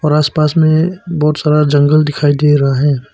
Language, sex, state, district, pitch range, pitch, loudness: Hindi, male, Arunachal Pradesh, Papum Pare, 145-155 Hz, 150 Hz, -12 LUFS